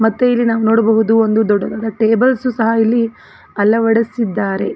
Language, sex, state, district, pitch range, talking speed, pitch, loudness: Kannada, female, Karnataka, Belgaum, 220-230 Hz, 125 wpm, 225 Hz, -14 LUFS